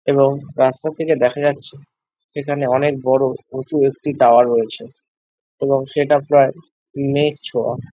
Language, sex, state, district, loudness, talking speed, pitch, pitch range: Bengali, male, West Bengal, Jalpaiguri, -17 LUFS, 135 wpm, 140 Hz, 135-150 Hz